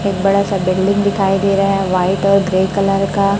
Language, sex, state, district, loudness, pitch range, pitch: Hindi, female, Chhattisgarh, Raipur, -15 LUFS, 190-200 Hz, 195 Hz